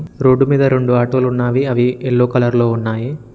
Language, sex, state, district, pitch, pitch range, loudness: Telugu, male, Telangana, Mahabubabad, 125 Hz, 120-130 Hz, -15 LUFS